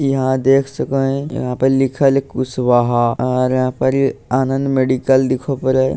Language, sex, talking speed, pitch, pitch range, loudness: Bhojpuri, male, 180 wpm, 130 Hz, 130-135 Hz, -16 LUFS